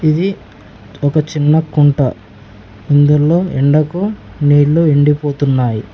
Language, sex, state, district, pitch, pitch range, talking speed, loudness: Telugu, male, Telangana, Mahabubabad, 145 Hz, 125-155 Hz, 80 wpm, -13 LUFS